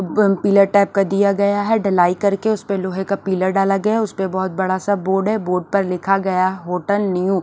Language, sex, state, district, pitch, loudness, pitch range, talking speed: Hindi, female, Maharashtra, Washim, 195 Hz, -18 LUFS, 185-200 Hz, 250 wpm